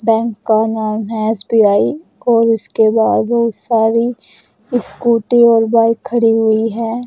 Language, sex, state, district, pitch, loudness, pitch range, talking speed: Hindi, female, Uttar Pradesh, Saharanpur, 225 Hz, -14 LUFS, 220-235 Hz, 135 wpm